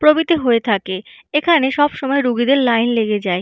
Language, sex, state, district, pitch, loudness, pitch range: Bengali, female, West Bengal, Purulia, 255 Hz, -16 LUFS, 225-290 Hz